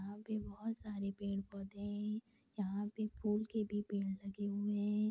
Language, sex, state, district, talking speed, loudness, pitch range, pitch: Hindi, female, Bihar, Darbhanga, 175 wpm, -41 LUFS, 200-215 Hz, 205 Hz